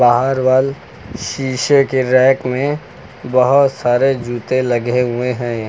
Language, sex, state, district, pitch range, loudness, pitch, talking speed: Hindi, male, Uttar Pradesh, Lucknow, 120-135 Hz, -15 LUFS, 130 Hz, 125 wpm